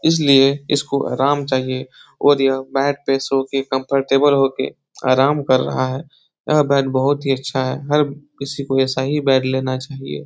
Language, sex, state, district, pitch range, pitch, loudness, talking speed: Hindi, male, Bihar, Jahanabad, 130-140 Hz, 135 Hz, -18 LUFS, 170 wpm